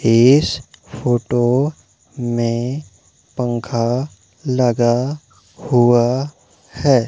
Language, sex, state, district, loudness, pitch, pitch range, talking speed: Hindi, male, Madhya Pradesh, Umaria, -17 LUFS, 120 Hz, 120-130 Hz, 60 wpm